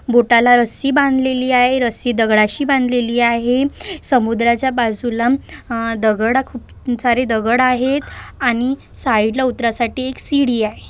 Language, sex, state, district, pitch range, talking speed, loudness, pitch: Marathi, female, Maharashtra, Aurangabad, 235-260 Hz, 130 wpm, -16 LUFS, 245 Hz